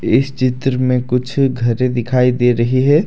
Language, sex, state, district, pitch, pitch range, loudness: Hindi, male, Jharkhand, Deoghar, 125 Hz, 125-135 Hz, -15 LUFS